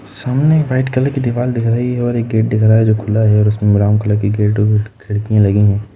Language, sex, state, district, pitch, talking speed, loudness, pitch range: Hindi, male, Bihar, Gaya, 110 Hz, 260 wpm, -14 LUFS, 105-120 Hz